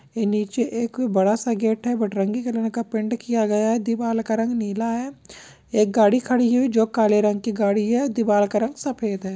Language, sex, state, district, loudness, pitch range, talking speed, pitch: Hindi, female, Bihar, East Champaran, -22 LUFS, 210-235 Hz, 210 wpm, 225 Hz